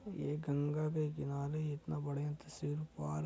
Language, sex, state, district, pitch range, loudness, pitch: Hindi, male, Bihar, Jamui, 145-155 Hz, -40 LUFS, 150 Hz